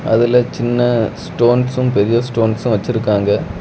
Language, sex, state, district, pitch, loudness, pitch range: Tamil, male, Tamil Nadu, Kanyakumari, 120 Hz, -15 LUFS, 110-120 Hz